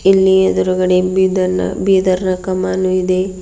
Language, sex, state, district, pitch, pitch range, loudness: Kannada, female, Karnataka, Bidar, 185 Hz, 185-190 Hz, -14 LUFS